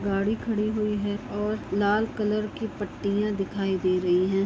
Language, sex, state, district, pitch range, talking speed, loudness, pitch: Hindi, female, Chhattisgarh, Bastar, 195-215 Hz, 175 wpm, -27 LUFS, 205 Hz